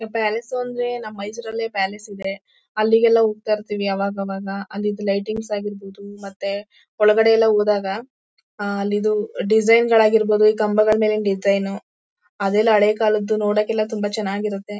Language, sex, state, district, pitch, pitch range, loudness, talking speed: Kannada, female, Karnataka, Mysore, 210 Hz, 200-220 Hz, -20 LUFS, 120 wpm